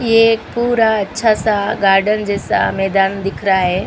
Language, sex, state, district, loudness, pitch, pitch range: Hindi, female, Maharashtra, Mumbai Suburban, -15 LUFS, 205 Hz, 195-225 Hz